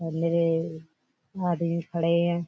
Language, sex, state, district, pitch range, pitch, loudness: Hindi, female, Uttar Pradesh, Budaun, 165-170 Hz, 170 Hz, -27 LUFS